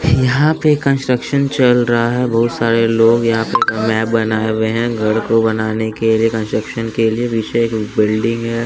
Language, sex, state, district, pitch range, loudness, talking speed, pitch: Hindi, male, Bihar, West Champaran, 110-120 Hz, -15 LUFS, 185 wpm, 115 Hz